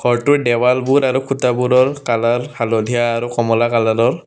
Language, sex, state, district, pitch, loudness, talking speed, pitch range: Assamese, male, Assam, Kamrup Metropolitan, 120 Hz, -16 LUFS, 125 wpm, 115-130 Hz